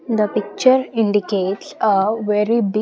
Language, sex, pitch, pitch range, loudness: English, female, 215 Hz, 205-225 Hz, -18 LUFS